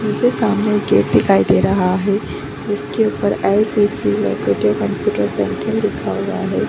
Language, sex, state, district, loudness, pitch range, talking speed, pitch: Hindi, female, Jharkhand, Jamtara, -17 LUFS, 195-215 Hz, 160 wpm, 205 Hz